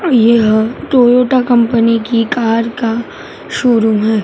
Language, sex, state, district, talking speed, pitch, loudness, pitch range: Hindi, male, Maharashtra, Mumbai Suburban, 115 wpm, 230 Hz, -12 LUFS, 225-245 Hz